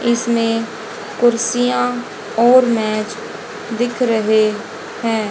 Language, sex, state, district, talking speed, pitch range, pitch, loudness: Hindi, female, Haryana, Charkhi Dadri, 80 wpm, 215-240 Hz, 230 Hz, -17 LUFS